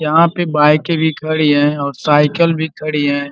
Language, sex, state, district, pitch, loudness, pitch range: Hindi, male, Uttar Pradesh, Gorakhpur, 150 Hz, -14 LUFS, 145-160 Hz